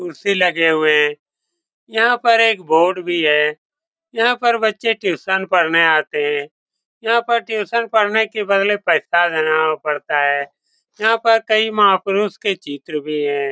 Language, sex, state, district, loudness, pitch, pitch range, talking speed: Hindi, male, Bihar, Saran, -16 LUFS, 195 Hz, 155-225 Hz, 155 wpm